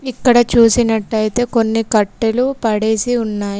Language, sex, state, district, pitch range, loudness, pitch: Telugu, female, Telangana, Komaram Bheem, 215-240 Hz, -15 LUFS, 225 Hz